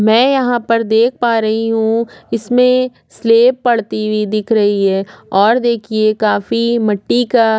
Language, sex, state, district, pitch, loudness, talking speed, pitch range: Hindi, female, Maharashtra, Aurangabad, 225 Hz, -14 LUFS, 160 wpm, 215-240 Hz